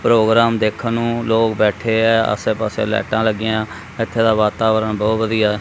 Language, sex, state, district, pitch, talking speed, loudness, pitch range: Punjabi, male, Punjab, Kapurthala, 110 Hz, 170 wpm, -17 LUFS, 110-115 Hz